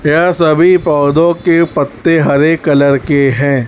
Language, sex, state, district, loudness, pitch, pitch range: Hindi, male, Chhattisgarh, Raipur, -10 LUFS, 155 Hz, 140-165 Hz